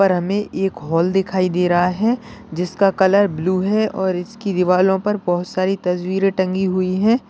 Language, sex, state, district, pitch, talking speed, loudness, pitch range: Hindi, male, Rajasthan, Nagaur, 190 Hz, 180 wpm, -18 LUFS, 180-195 Hz